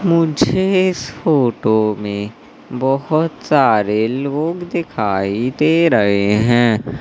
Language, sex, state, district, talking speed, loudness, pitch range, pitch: Hindi, male, Madhya Pradesh, Katni, 95 wpm, -16 LUFS, 105-160 Hz, 130 Hz